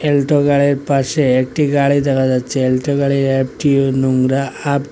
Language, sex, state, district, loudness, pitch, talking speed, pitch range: Bengali, male, Assam, Hailakandi, -15 LUFS, 140 Hz, 160 wpm, 130-140 Hz